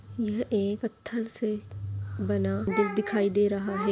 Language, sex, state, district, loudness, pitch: Hindi, female, Chhattisgarh, Kabirdham, -29 LUFS, 205 Hz